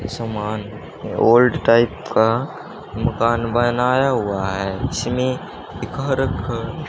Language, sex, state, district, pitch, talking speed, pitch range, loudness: Hindi, male, Haryana, Charkhi Dadri, 115 Hz, 115 wpm, 105-125 Hz, -19 LUFS